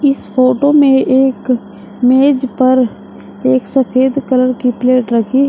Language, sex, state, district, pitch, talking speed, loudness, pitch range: Hindi, female, Uttar Pradesh, Shamli, 255 Hz, 140 wpm, -12 LUFS, 250-270 Hz